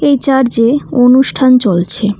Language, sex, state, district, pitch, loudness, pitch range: Bengali, female, West Bengal, Cooch Behar, 255 Hz, -10 LUFS, 225-265 Hz